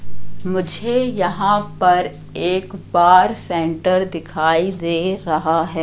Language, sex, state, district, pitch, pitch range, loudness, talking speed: Hindi, female, Madhya Pradesh, Katni, 180 Hz, 165-185 Hz, -18 LUFS, 105 wpm